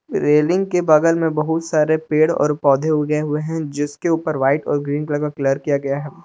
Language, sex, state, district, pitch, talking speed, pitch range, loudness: Hindi, male, Jharkhand, Palamu, 150 Hz, 220 wpm, 145-160 Hz, -18 LUFS